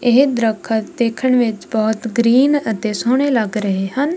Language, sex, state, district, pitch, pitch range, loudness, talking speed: Punjabi, female, Punjab, Kapurthala, 230 Hz, 220-255 Hz, -17 LUFS, 160 wpm